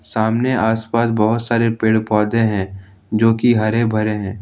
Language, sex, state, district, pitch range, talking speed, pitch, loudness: Hindi, male, Jharkhand, Ranchi, 105-115 Hz, 175 wpm, 110 Hz, -17 LUFS